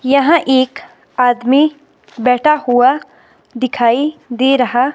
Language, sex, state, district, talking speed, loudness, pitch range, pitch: Hindi, female, Himachal Pradesh, Shimla, 95 wpm, -14 LUFS, 250-295 Hz, 260 Hz